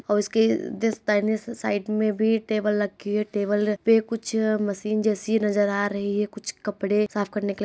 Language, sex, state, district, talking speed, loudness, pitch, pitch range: Hindi, female, Uttar Pradesh, Hamirpur, 190 wpm, -24 LUFS, 210 Hz, 205-220 Hz